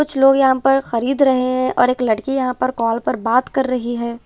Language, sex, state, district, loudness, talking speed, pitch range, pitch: Hindi, female, Chhattisgarh, Raipur, -17 LUFS, 255 wpm, 240-270 Hz, 255 Hz